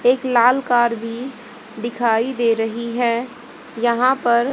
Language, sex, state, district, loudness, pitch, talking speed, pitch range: Hindi, female, Haryana, Jhajjar, -19 LUFS, 240 Hz, 135 wpm, 235-250 Hz